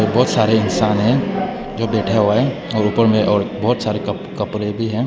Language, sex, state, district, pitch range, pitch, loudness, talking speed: Hindi, male, Nagaland, Dimapur, 105-115 Hz, 110 Hz, -17 LUFS, 190 wpm